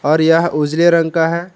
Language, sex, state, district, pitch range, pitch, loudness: Hindi, male, Jharkhand, Palamu, 160-170 Hz, 165 Hz, -14 LUFS